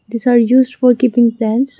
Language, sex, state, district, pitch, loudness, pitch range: English, female, Assam, Kamrup Metropolitan, 245 Hz, -13 LUFS, 235-255 Hz